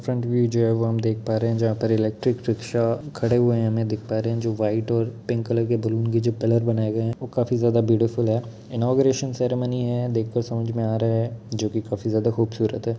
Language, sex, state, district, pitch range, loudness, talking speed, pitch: Hindi, male, Bihar, Muzaffarpur, 110-120 Hz, -23 LUFS, 255 wpm, 115 Hz